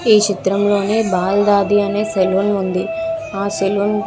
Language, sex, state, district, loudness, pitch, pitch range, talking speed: Telugu, female, Andhra Pradesh, Visakhapatnam, -16 LUFS, 205 Hz, 195-210 Hz, 150 wpm